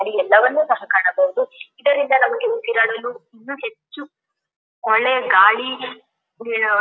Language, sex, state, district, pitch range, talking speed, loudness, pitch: Kannada, female, Karnataka, Dharwad, 225-285 Hz, 115 wpm, -17 LUFS, 255 Hz